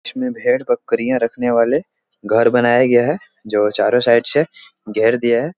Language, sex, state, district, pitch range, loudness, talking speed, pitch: Hindi, male, Bihar, Jahanabad, 115-180 Hz, -16 LUFS, 170 wpm, 120 Hz